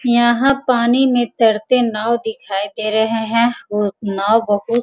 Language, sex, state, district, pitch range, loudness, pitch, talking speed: Hindi, female, Bihar, Sitamarhi, 215-240 Hz, -16 LUFS, 230 Hz, 160 wpm